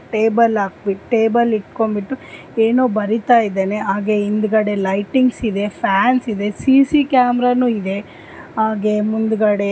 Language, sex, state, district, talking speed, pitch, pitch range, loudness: Kannada, female, Karnataka, Dharwad, 110 wpm, 220 Hz, 205-240 Hz, -17 LUFS